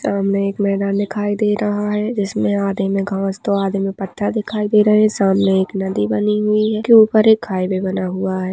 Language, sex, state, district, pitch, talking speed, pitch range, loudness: Hindi, female, Jharkhand, Sahebganj, 200 Hz, 225 wpm, 195-210 Hz, -17 LUFS